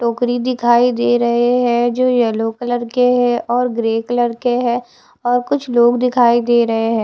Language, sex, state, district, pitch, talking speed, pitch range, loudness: Hindi, female, Bihar, West Champaran, 240 Hz, 185 wpm, 235-245 Hz, -15 LUFS